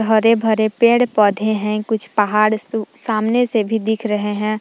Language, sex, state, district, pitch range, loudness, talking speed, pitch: Hindi, female, Jharkhand, Palamu, 215-225 Hz, -17 LUFS, 195 wpm, 220 Hz